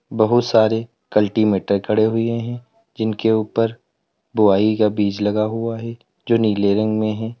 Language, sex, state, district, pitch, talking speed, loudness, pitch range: Hindi, male, Uttar Pradesh, Lalitpur, 110 Hz, 155 wpm, -19 LUFS, 105-115 Hz